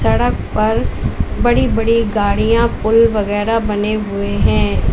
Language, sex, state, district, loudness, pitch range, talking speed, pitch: Hindi, female, Uttar Pradesh, Lalitpur, -16 LUFS, 200-225 Hz, 120 wpm, 210 Hz